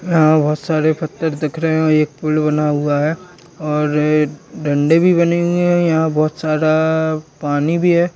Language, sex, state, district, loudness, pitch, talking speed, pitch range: Hindi, male, Uttar Pradesh, Deoria, -16 LUFS, 155 Hz, 190 wpm, 150-165 Hz